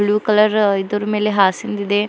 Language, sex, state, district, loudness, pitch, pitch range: Kannada, female, Karnataka, Bidar, -17 LUFS, 210 Hz, 205-210 Hz